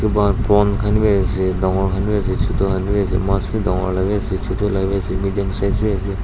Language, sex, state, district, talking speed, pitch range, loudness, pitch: Nagamese, male, Nagaland, Dimapur, 220 wpm, 95-105 Hz, -18 LUFS, 100 Hz